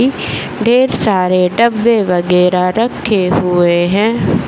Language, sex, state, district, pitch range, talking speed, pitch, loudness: Hindi, female, Bihar, Bhagalpur, 180-230 Hz, 105 wpm, 190 Hz, -13 LUFS